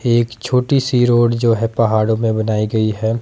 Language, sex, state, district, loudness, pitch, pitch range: Hindi, male, Himachal Pradesh, Shimla, -16 LUFS, 115 Hz, 110-120 Hz